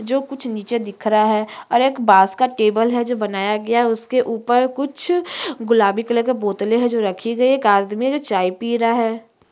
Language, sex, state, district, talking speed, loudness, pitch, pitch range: Hindi, female, Chhattisgarh, Bastar, 225 wpm, -18 LUFS, 230 Hz, 215-250 Hz